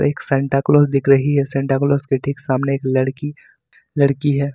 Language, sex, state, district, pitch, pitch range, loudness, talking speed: Hindi, male, Jharkhand, Ranchi, 140 Hz, 135-145 Hz, -17 LUFS, 200 wpm